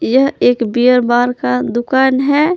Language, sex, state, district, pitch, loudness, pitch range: Hindi, male, Jharkhand, Palamu, 250 Hz, -13 LUFS, 240-265 Hz